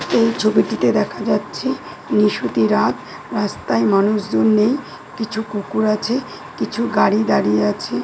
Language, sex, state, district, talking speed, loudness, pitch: Bengali, female, West Bengal, Dakshin Dinajpur, 125 wpm, -18 LUFS, 210 Hz